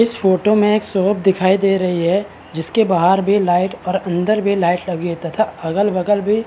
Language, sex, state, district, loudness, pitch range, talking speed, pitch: Hindi, male, Uttarakhand, Uttarkashi, -17 LUFS, 180-205 Hz, 230 wpm, 195 Hz